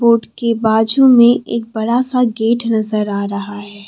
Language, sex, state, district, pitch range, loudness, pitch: Hindi, female, Assam, Kamrup Metropolitan, 215-235 Hz, -14 LUFS, 225 Hz